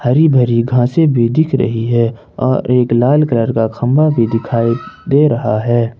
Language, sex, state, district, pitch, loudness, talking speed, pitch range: Hindi, male, Jharkhand, Ranchi, 120 Hz, -13 LUFS, 180 wpm, 115-140 Hz